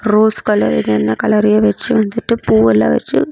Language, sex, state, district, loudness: Tamil, female, Tamil Nadu, Namakkal, -13 LUFS